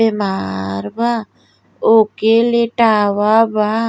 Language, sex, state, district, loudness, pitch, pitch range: Bhojpuri, female, Uttar Pradesh, Gorakhpur, -15 LUFS, 220 Hz, 205-230 Hz